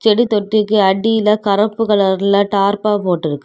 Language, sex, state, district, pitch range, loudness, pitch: Tamil, female, Tamil Nadu, Kanyakumari, 195-215 Hz, -14 LUFS, 205 Hz